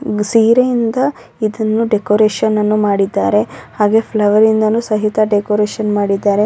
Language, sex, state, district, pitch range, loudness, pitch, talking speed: Kannada, female, Karnataka, Raichur, 205-220 Hz, -14 LUFS, 215 Hz, 130 wpm